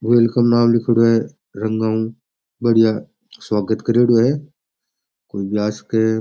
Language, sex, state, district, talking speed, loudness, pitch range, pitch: Rajasthani, male, Rajasthan, Nagaur, 135 wpm, -18 LUFS, 110-120 Hz, 115 Hz